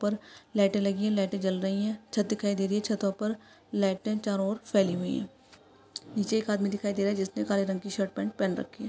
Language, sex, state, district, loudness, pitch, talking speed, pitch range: Hindi, female, Maharashtra, Solapur, -30 LUFS, 205 Hz, 250 wpm, 195-215 Hz